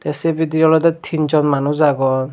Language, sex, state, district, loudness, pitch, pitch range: Chakma, male, Tripura, Dhalai, -16 LUFS, 155 Hz, 145-160 Hz